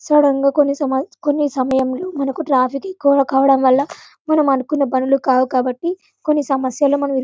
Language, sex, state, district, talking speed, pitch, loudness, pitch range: Telugu, female, Telangana, Karimnagar, 165 wpm, 275 Hz, -17 LUFS, 265-295 Hz